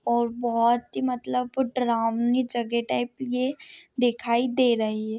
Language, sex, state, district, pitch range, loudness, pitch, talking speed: Hindi, female, Maharashtra, Pune, 235-255 Hz, -25 LUFS, 240 Hz, 140 wpm